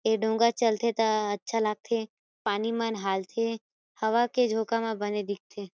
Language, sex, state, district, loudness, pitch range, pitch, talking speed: Chhattisgarhi, female, Chhattisgarh, Kabirdham, -28 LUFS, 205-230 Hz, 220 Hz, 165 wpm